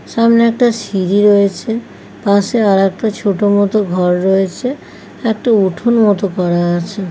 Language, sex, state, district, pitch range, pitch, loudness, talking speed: Bengali, female, West Bengal, Kolkata, 190-225 Hz, 205 Hz, -14 LUFS, 145 wpm